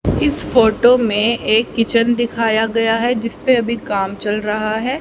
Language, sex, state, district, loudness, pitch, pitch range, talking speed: Hindi, female, Haryana, Charkhi Dadri, -16 LUFS, 230 Hz, 215-240 Hz, 180 wpm